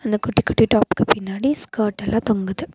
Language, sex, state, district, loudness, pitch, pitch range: Tamil, female, Tamil Nadu, Nilgiris, -20 LUFS, 215 Hz, 205-225 Hz